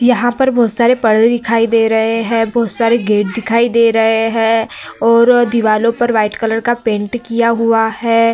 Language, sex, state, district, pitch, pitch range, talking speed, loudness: Hindi, female, Bihar, Vaishali, 230 Hz, 225-235 Hz, 200 wpm, -13 LUFS